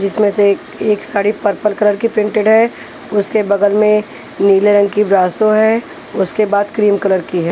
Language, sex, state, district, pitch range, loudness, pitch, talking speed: Hindi, female, Punjab, Pathankot, 200-215 Hz, -13 LUFS, 205 Hz, 190 wpm